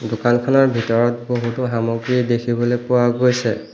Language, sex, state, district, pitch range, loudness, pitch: Assamese, male, Assam, Hailakandi, 115-125 Hz, -18 LUFS, 120 Hz